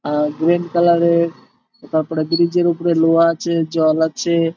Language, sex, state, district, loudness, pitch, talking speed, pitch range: Bengali, male, West Bengal, Malda, -17 LUFS, 165 Hz, 155 wpm, 160-170 Hz